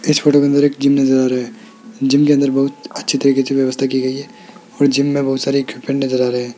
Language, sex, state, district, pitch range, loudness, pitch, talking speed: Hindi, male, Rajasthan, Jaipur, 130-140 Hz, -15 LUFS, 140 Hz, 280 wpm